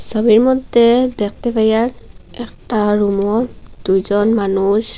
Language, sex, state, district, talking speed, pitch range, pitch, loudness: Bengali, female, Assam, Hailakandi, 120 wpm, 205-235 Hz, 220 Hz, -15 LUFS